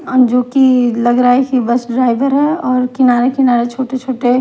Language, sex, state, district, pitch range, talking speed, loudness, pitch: Hindi, female, Himachal Pradesh, Shimla, 245-260 Hz, 165 wpm, -13 LUFS, 250 Hz